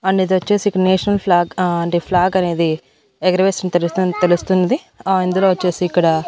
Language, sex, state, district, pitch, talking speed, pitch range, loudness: Telugu, female, Andhra Pradesh, Annamaya, 185 Hz, 145 wpm, 175-190 Hz, -17 LUFS